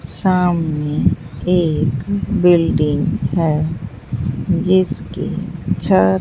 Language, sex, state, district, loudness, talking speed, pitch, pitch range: Hindi, female, Bihar, Katihar, -17 LUFS, 60 wpm, 160 Hz, 145-180 Hz